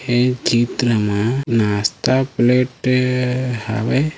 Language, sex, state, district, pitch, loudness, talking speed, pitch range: Chhattisgarhi, male, Chhattisgarh, Raigarh, 125 Hz, -18 LUFS, 100 wpm, 115-125 Hz